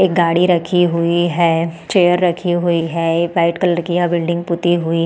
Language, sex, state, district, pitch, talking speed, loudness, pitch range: Hindi, female, Chhattisgarh, Balrampur, 170 Hz, 215 wpm, -16 LUFS, 170-175 Hz